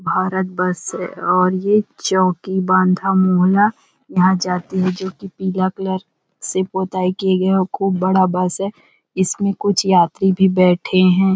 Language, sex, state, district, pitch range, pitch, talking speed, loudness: Hindi, female, Chhattisgarh, Rajnandgaon, 185-190 Hz, 185 Hz, 160 wpm, -17 LUFS